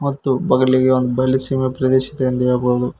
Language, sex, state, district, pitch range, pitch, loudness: Kannada, male, Karnataka, Koppal, 125-130 Hz, 130 Hz, -17 LUFS